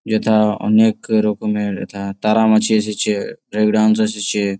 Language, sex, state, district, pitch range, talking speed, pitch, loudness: Bengali, male, West Bengal, Jalpaiguri, 105-110 Hz, 145 wpm, 105 Hz, -17 LUFS